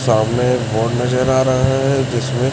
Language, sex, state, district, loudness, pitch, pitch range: Hindi, male, Chhattisgarh, Raipur, -16 LUFS, 125 Hz, 120-130 Hz